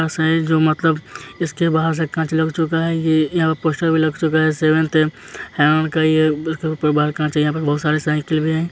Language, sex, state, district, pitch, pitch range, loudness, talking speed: Hindi, male, Bihar, Muzaffarpur, 160 Hz, 155-160 Hz, -18 LUFS, 205 wpm